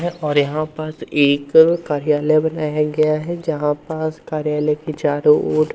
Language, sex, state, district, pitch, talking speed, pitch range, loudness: Hindi, male, Madhya Pradesh, Umaria, 155 Hz, 145 wpm, 150-155 Hz, -18 LUFS